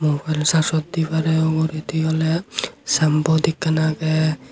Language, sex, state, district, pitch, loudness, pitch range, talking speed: Chakma, male, Tripura, Unakoti, 160 Hz, -20 LUFS, 155-160 Hz, 80 wpm